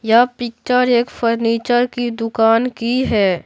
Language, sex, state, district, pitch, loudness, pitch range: Hindi, male, Bihar, Patna, 235 Hz, -17 LUFS, 230-245 Hz